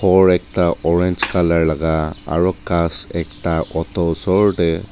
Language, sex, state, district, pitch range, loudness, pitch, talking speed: Nagamese, male, Nagaland, Dimapur, 80-90 Hz, -17 LUFS, 85 Hz, 135 wpm